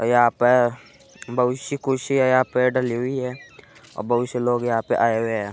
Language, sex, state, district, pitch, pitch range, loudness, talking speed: Hindi, male, Uttar Pradesh, Muzaffarnagar, 125 Hz, 120-130 Hz, -21 LUFS, 205 wpm